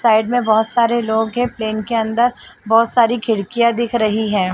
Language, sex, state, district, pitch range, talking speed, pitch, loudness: Hindi, female, Uttar Pradesh, Varanasi, 220-235 Hz, 200 wpm, 225 Hz, -16 LUFS